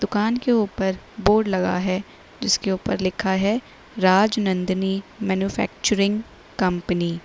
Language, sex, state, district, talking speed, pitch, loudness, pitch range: Hindi, female, Uttar Pradesh, Lalitpur, 115 wpm, 195 Hz, -22 LUFS, 185-215 Hz